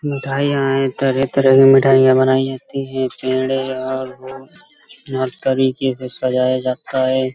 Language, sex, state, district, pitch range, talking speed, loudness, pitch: Hindi, male, Uttar Pradesh, Hamirpur, 130-135 Hz, 145 wpm, -16 LUFS, 130 Hz